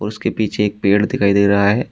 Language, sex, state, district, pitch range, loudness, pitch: Hindi, male, Uttar Pradesh, Shamli, 100-105 Hz, -16 LUFS, 105 Hz